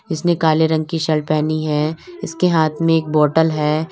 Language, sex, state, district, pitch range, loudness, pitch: Hindi, female, Uttar Pradesh, Lalitpur, 155-165 Hz, -17 LUFS, 160 Hz